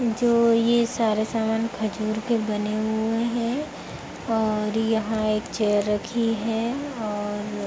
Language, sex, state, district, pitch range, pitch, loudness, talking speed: Hindi, female, Uttar Pradesh, Hamirpur, 215-230 Hz, 220 Hz, -24 LUFS, 135 wpm